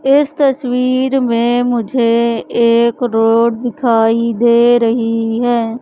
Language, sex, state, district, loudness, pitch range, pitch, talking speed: Hindi, female, Madhya Pradesh, Katni, -13 LUFS, 230-245 Hz, 235 Hz, 105 wpm